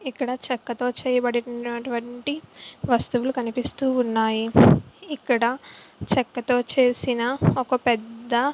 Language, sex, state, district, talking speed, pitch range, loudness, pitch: Telugu, female, Andhra Pradesh, Visakhapatnam, 90 wpm, 240-255 Hz, -23 LUFS, 245 Hz